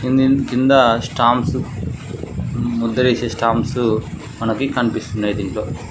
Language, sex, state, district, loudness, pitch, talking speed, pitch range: Telugu, male, Telangana, Mahabubabad, -18 LUFS, 120 Hz, 80 wpm, 115-130 Hz